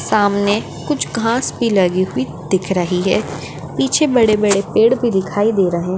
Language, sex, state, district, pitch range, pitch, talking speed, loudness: Hindi, female, Maharashtra, Dhule, 185-230 Hz, 200 Hz, 190 wpm, -16 LUFS